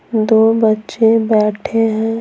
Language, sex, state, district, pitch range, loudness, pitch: Hindi, female, Bihar, Patna, 220-225 Hz, -14 LUFS, 225 Hz